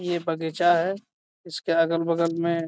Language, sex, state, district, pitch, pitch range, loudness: Hindi, male, Bihar, Jamui, 170 Hz, 165-175 Hz, -24 LUFS